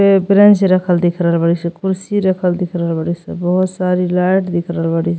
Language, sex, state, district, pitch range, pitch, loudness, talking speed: Bhojpuri, female, Uttar Pradesh, Ghazipur, 170-190 Hz, 180 Hz, -15 LUFS, 230 wpm